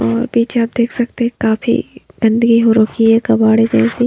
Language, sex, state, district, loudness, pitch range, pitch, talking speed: Hindi, female, Maharashtra, Mumbai Suburban, -14 LUFS, 220-235 Hz, 230 Hz, 190 wpm